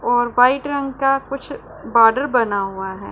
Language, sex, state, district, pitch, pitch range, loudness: Hindi, female, Punjab, Pathankot, 245 Hz, 225-275 Hz, -18 LUFS